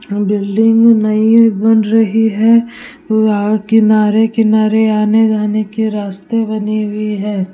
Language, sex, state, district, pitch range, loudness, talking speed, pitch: Hindi, female, Bihar, Vaishali, 210-225 Hz, -12 LUFS, 110 wpm, 215 Hz